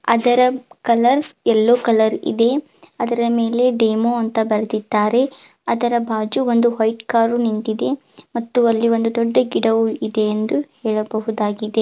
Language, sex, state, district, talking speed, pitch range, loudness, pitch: Kannada, female, Karnataka, Belgaum, 120 wpm, 220-240 Hz, -18 LUFS, 230 Hz